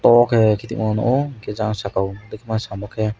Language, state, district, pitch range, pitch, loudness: Kokborok, Tripura, West Tripura, 105-115 Hz, 110 Hz, -20 LUFS